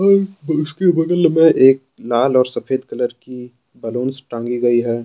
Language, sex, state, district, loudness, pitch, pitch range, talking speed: Hindi, male, Jharkhand, Deoghar, -17 LUFS, 130 Hz, 120-160 Hz, 155 wpm